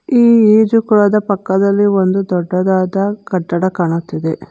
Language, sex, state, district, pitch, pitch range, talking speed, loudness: Kannada, female, Karnataka, Bangalore, 195 Hz, 185-210 Hz, 95 wpm, -13 LUFS